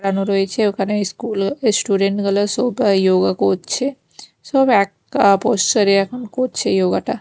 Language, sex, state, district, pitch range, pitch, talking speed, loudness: Bengali, female, Bihar, Katihar, 195-235 Hz, 200 Hz, 135 wpm, -17 LUFS